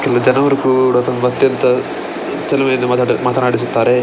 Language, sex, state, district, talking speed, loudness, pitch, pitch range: Kannada, male, Karnataka, Dakshina Kannada, 105 wpm, -15 LUFS, 125 Hz, 125-130 Hz